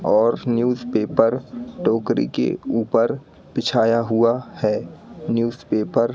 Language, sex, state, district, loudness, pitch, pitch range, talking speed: Hindi, male, Madhya Pradesh, Katni, -21 LUFS, 115 Hz, 115-125 Hz, 115 wpm